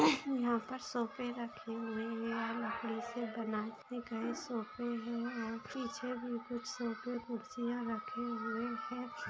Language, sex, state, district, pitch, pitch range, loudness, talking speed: Hindi, female, Bihar, Lakhisarai, 235 Hz, 225-250 Hz, -40 LUFS, 135 wpm